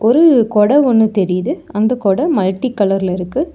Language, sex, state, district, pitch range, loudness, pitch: Tamil, male, Tamil Nadu, Chennai, 195-260 Hz, -14 LUFS, 215 Hz